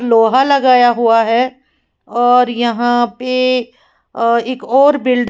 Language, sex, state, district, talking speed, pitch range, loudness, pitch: Hindi, female, Uttar Pradesh, Lalitpur, 125 wpm, 235-255 Hz, -13 LUFS, 245 Hz